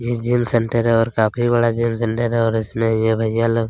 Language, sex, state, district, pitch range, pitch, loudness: Hindi, male, Chhattisgarh, Kabirdham, 115-120 Hz, 115 Hz, -18 LUFS